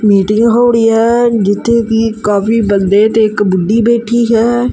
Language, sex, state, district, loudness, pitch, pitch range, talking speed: Punjabi, male, Punjab, Kapurthala, -11 LUFS, 225 Hz, 210-235 Hz, 165 wpm